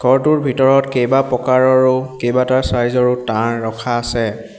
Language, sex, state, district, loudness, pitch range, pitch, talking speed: Assamese, male, Assam, Hailakandi, -15 LUFS, 120-130 Hz, 125 Hz, 130 wpm